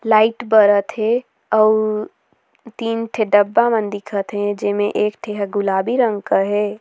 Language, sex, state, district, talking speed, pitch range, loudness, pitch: Surgujia, female, Chhattisgarh, Sarguja, 160 wpm, 205-225 Hz, -18 LUFS, 215 Hz